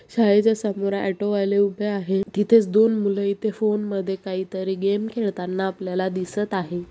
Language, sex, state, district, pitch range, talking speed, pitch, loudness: Marathi, female, Maharashtra, Sindhudurg, 190-210 Hz, 155 wpm, 200 Hz, -22 LUFS